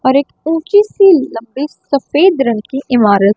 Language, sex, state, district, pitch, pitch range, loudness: Hindi, female, Chandigarh, Chandigarh, 280 Hz, 235-320 Hz, -13 LUFS